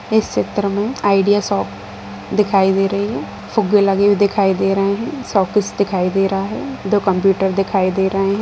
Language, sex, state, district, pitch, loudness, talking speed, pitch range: Hindi, female, Bihar, Madhepura, 195 Hz, -17 LUFS, 220 wpm, 195-205 Hz